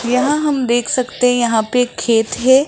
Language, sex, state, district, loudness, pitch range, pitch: Hindi, female, Rajasthan, Jaipur, -15 LUFS, 240-260 Hz, 250 Hz